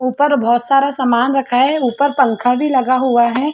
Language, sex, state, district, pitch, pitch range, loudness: Hindi, female, Chhattisgarh, Bilaspur, 260 Hz, 245-280 Hz, -14 LUFS